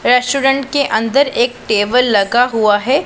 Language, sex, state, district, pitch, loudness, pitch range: Hindi, female, Punjab, Pathankot, 250 Hz, -14 LUFS, 220-270 Hz